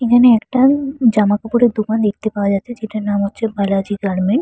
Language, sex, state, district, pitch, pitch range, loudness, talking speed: Bengali, female, West Bengal, Purulia, 220 Hz, 205-240 Hz, -16 LUFS, 190 wpm